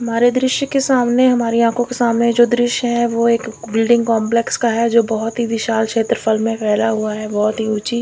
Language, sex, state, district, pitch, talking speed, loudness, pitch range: Hindi, female, Bihar, Katihar, 230 Hz, 215 wpm, -16 LUFS, 225-240 Hz